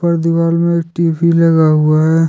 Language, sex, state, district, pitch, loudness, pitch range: Hindi, male, Jharkhand, Deoghar, 165 Hz, -12 LUFS, 160-170 Hz